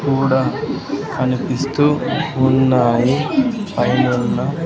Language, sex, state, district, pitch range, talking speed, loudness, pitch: Telugu, male, Andhra Pradesh, Sri Satya Sai, 130-150 Hz, 50 wpm, -17 LUFS, 130 Hz